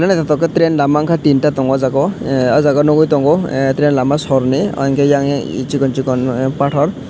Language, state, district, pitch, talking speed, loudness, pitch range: Kokborok, Tripura, Dhalai, 140 Hz, 185 wpm, -14 LUFS, 135-150 Hz